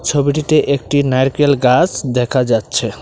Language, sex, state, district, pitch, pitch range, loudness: Bengali, male, Tripura, Dhalai, 135 Hz, 125-145 Hz, -14 LUFS